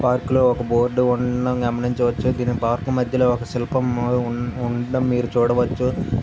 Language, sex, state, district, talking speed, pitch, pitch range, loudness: Telugu, male, Andhra Pradesh, Visakhapatnam, 145 wpm, 125 Hz, 120-125 Hz, -21 LUFS